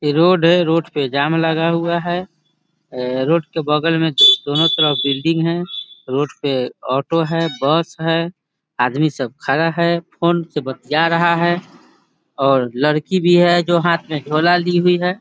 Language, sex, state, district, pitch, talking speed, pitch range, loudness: Hindi, male, Bihar, Muzaffarpur, 165 Hz, 170 wpm, 145-170 Hz, -16 LUFS